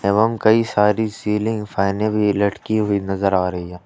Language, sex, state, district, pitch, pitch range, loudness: Hindi, male, Jharkhand, Ranchi, 105 Hz, 100-110 Hz, -19 LUFS